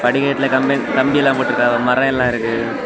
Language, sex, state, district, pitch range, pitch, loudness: Tamil, male, Tamil Nadu, Kanyakumari, 120-135 Hz, 130 Hz, -16 LUFS